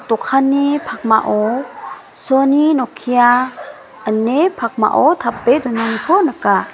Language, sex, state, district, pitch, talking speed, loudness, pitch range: Garo, female, Meghalaya, West Garo Hills, 255 Hz, 80 wpm, -15 LUFS, 230-285 Hz